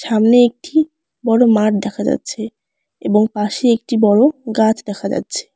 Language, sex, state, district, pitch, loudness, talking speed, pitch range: Bengali, female, West Bengal, Alipurduar, 225 Hz, -16 LUFS, 140 wpm, 215-245 Hz